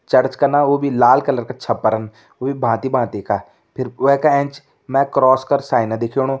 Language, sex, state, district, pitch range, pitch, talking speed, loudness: Kumaoni, male, Uttarakhand, Tehri Garhwal, 120-140 Hz, 135 Hz, 185 wpm, -17 LUFS